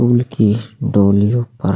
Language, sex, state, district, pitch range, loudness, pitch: Hindi, male, Chhattisgarh, Sukma, 100-120 Hz, -15 LUFS, 115 Hz